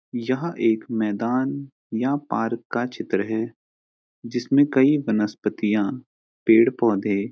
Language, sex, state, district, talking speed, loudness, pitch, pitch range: Hindi, male, Uttarakhand, Uttarkashi, 115 wpm, -22 LUFS, 115 Hz, 105-130 Hz